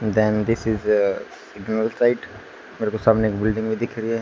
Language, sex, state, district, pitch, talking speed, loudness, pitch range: Hindi, male, Haryana, Charkhi Dadri, 110 Hz, 185 wpm, -22 LUFS, 105-110 Hz